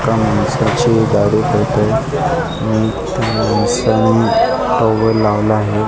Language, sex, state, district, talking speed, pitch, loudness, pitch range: Marathi, male, Maharashtra, Mumbai Suburban, 110 wpm, 110 Hz, -14 LUFS, 105-115 Hz